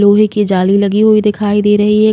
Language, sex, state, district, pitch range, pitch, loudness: Hindi, female, Uttar Pradesh, Jalaun, 205-215 Hz, 210 Hz, -11 LUFS